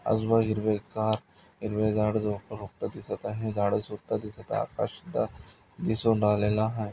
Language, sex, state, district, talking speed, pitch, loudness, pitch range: Marathi, male, Maharashtra, Nagpur, 145 wpm, 110 Hz, -29 LUFS, 105-110 Hz